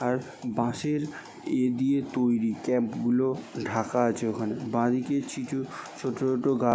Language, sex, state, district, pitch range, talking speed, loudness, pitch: Bengali, male, West Bengal, Jalpaiguri, 120-130 Hz, 135 wpm, -28 LUFS, 125 Hz